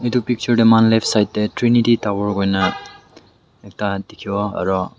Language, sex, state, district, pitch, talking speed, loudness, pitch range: Nagamese, male, Nagaland, Dimapur, 105 Hz, 155 wpm, -17 LUFS, 100-115 Hz